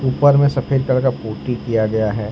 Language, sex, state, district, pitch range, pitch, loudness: Hindi, male, Jharkhand, Ranchi, 110-135 Hz, 130 Hz, -17 LUFS